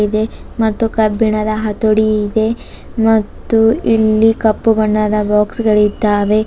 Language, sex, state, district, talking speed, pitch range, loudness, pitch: Kannada, female, Karnataka, Bidar, 100 wpm, 215-225 Hz, -14 LUFS, 215 Hz